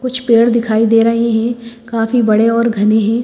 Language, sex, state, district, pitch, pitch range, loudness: Hindi, female, Madhya Pradesh, Bhopal, 230 Hz, 225-235 Hz, -13 LUFS